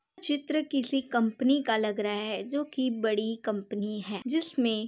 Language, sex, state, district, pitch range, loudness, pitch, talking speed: Hindi, female, Uttar Pradesh, Hamirpur, 215-285 Hz, -30 LUFS, 235 Hz, 160 wpm